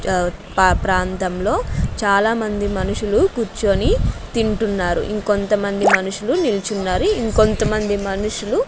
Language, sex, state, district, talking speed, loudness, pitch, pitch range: Telugu, female, Andhra Pradesh, Sri Satya Sai, 75 wpm, -19 LUFS, 205 Hz, 190-215 Hz